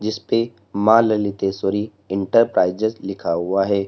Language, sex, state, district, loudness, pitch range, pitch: Hindi, male, Uttar Pradesh, Lalitpur, -20 LUFS, 95-110 Hz, 100 Hz